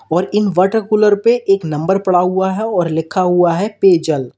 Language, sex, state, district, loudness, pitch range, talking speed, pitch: Hindi, male, Uttar Pradesh, Lalitpur, -14 LUFS, 175-205 Hz, 205 wpm, 190 Hz